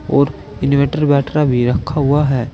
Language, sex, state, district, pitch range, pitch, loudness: Hindi, male, Uttar Pradesh, Saharanpur, 130-145 Hz, 140 Hz, -15 LUFS